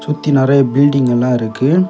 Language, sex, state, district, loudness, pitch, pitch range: Tamil, male, Tamil Nadu, Kanyakumari, -13 LUFS, 135 Hz, 125-145 Hz